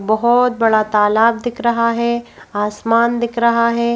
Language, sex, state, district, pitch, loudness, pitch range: Hindi, female, Madhya Pradesh, Bhopal, 235 Hz, -15 LUFS, 220-235 Hz